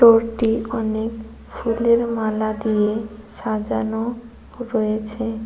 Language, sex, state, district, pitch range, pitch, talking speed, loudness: Bengali, female, West Bengal, Cooch Behar, 215-230 Hz, 225 Hz, 75 wpm, -21 LUFS